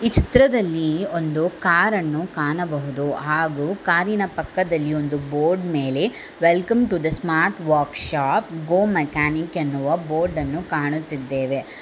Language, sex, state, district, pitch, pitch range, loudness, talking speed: Kannada, female, Karnataka, Bangalore, 160 Hz, 150-180 Hz, -21 LUFS, 110 wpm